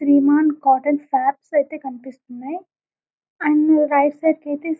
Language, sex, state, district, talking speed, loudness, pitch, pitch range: Telugu, female, Telangana, Karimnagar, 125 wpm, -18 LUFS, 295 Hz, 285-320 Hz